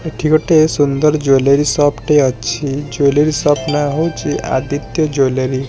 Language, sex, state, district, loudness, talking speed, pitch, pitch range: Odia, male, Odisha, Khordha, -14 LUFS, 150 wpm, 145 Hz, 135-155 Hz